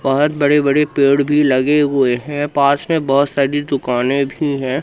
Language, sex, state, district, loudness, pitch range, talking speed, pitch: Hindi, male, Madhya Pradesh, Katni, -15 LUFS, 135-145 Hz, 185 wpm, 140 Hz